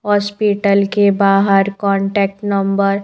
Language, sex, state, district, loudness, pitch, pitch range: Hindi, female, Madhya Pradesh, Bhopal, -15 LUFS, 200 Hz, 195-205 Hz